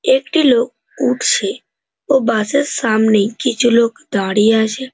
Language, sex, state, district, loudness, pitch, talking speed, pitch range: Bengali, male, West Bengal, North 24 Parganas, -15 LUFS, 235 Hz, 135 wpm, 220-270 Hz